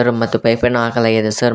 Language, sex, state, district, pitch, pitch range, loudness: Kannada, male, Karnataka, Koppal, 115 Hz, 115-120 Hz, -15 LUFS